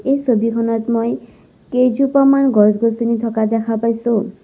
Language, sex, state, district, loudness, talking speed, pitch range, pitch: Assamese, female, Assam, Sonitpur, -16 LUFS, 110 wpm, 225-250 Hz, 230 Hz